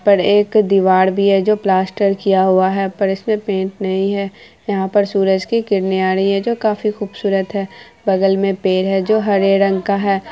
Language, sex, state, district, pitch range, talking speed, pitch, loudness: Hindi, female, Bihar, Araria, 190-205 Hz, 205 wpm, 195 Hz, -16 LUFS